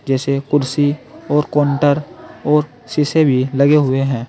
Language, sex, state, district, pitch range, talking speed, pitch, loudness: Hindi, male, Uttar Pradesh, Saharanpur, 135-150 Hz, 140 wpm, 145 Hz, -16 LUFS